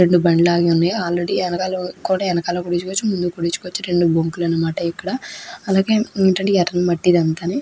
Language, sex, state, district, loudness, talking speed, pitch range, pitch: Telugu, female, Andhra Pradesh, Krishna, -19 LUFS, 165 wpm, 170-190 Hz, 175 Hz